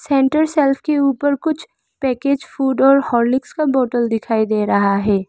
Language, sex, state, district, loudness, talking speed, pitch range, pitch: Hindi, female, Arunachal Pradesh, Lower Dibang Valley, -17 LUFS, 170 wpm, 230-280 Hz, 270 Hz